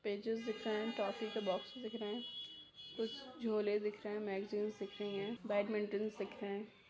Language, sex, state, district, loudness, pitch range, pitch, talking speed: Hindi, female, Bihar, Jahanabad, -41 LUFS, 205-220 Hz, 210 Hz, 200 wpm